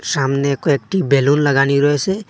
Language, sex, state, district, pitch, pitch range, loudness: Bengali, male, Assam, Hailakandi, 140 Hz, 140-150 Hz, -16 LUFS